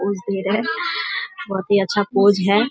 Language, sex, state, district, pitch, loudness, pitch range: Hindi, female, Bihar, Sitamarhi, 200 Hz, -19 LUFS, 195-220 Hz